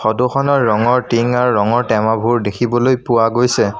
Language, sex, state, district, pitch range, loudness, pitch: Assamese, male, Assam, Sonitpur, 115-125 Hz, -15 LUFS, 120 Hz